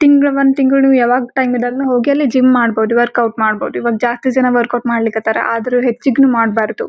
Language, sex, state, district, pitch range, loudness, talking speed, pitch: Kannada, female, Karnataka, Gulbarga, 235-265 Hz, -13 LUFS, 185 wpm, 245 Hz